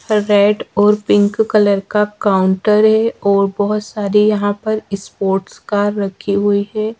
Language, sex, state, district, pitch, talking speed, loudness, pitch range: Hindi, female, Madhya Pradesh, Dhar, 205 Hz, 145 wpm, -15 LUFS, 200-210 Hz